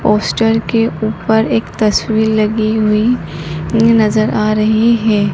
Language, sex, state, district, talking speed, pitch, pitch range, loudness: Hindi, male, Madhya Pradesh, Dhar, 125 wpm, 215 Hz, 215-225 Hz, -13 LUFS